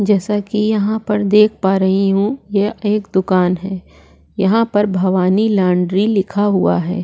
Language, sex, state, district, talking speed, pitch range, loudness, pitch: Hindi, female, Chhattisgarh, Korba, 160 wpm, 190-210 Hz, -15 LUFS, 200 Hz